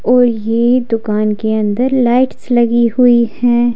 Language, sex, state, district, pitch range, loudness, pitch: Hindi, female, Himachal Pradesh, Shimla, 225-245 Hz, -13 LUFS, 235 Hz